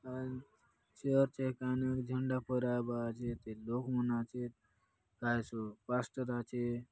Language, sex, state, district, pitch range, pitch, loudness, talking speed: Halbi, male, Chhattisgarh, Bastar, 115-130 Hz, 120 Hz, -38 LUFS, 130 wpm